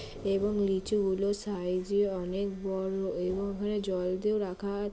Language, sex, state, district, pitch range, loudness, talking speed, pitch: Bengali, female, West Bengal, Malda, 190-205 Hz, -31 LUFS, 160 wpm, 195 Hz